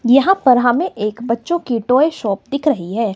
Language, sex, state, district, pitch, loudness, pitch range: Hindi, female, Himachal Pradesh, Shimla, 250 Hz, -16 LUFS, 230-295 Hz